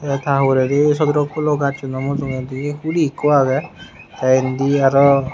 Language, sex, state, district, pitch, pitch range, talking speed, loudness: Chakma, male, Tripura, Unakoti, 140 Hz, 135-145 Hz, 155 wpm, -17 LUFS